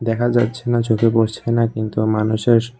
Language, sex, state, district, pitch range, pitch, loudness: Bengali, male, Tripura, West Tripura, 110-120 Hz, 115 Hz, -18 LUFS